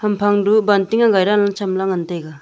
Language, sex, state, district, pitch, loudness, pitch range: Wancho, female, Arunachal Pradesh, Longding, 200 Hz, -16 LUFS, 190-210 Hz